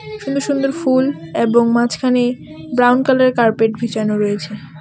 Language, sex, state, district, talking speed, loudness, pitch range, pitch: Bengali, female, West Bengal, Alipurduar, 135 wpm, -16 LUFS, 210-260 Hz, 235 Hz